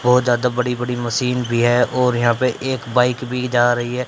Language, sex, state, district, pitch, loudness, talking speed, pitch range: Hindi, male, Haryana, Charkhi Dadri, 125 Hz, -18 LUFS, 235 wpm, 120-125 Hz